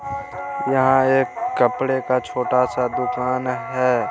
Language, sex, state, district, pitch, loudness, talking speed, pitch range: Hindi, male, Bihar, Araria, 130 Hz, -20 LUFS, 115 wpm, 125-135 Hz